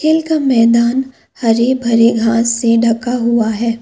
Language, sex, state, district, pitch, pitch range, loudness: Hindi, female, Assam, Kamrup Metropolitan, 235 Hz, 230-255 Hz, -13 LUFS